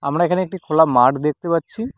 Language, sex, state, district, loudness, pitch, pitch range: Bengali, male, West Bengal, Cooch Behar, -18 LUFS, 165 Hz, 150-185 Hz